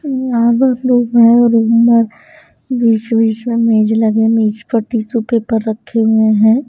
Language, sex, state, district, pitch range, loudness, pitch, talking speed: Hindi, female, Bihar, Patna, 220-235 Hz, -13 LUFS, 230 Hz, 110 wpm